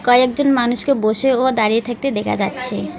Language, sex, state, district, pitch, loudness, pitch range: Bengali, female, West Bengal, Alipurduar, 245 Hz, -17 LUFS, 220-260 Hz